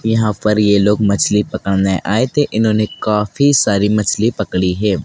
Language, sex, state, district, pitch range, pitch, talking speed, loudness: Hindi, male, Madhya Pradesh, Dhar, 100-110 Hz, 105 Hz, 165 wpm, -15 LUFS